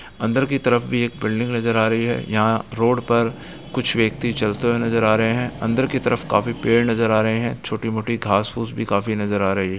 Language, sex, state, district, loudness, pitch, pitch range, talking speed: Hindi, male, Uttar Pradesh, Etah, -20 LUFS, 115 Hz, 110-120 Hz, 250 wpm